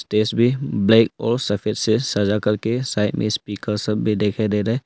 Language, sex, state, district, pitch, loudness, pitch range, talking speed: Hindi, male, Arunachal Pradesh, Longding, 105 Hz, -20 LUFS, 105-115 Hz, 210 wpm